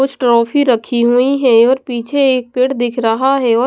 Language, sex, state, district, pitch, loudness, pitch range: Hindi, female, Haryana, Jhajjar, 250 Hz, -13 LUFS, 235-270 Hz